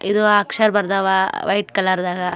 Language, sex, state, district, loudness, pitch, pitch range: Kannada, female, Karnataka, Gulbarga, -18 LUFS, 195 Hz, 190-205 Hz